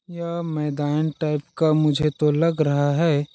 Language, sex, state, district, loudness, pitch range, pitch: Hindi, male, Chhattisgarh, Balrampur, -22 LUFS, 150-165 Hz, 155 Hz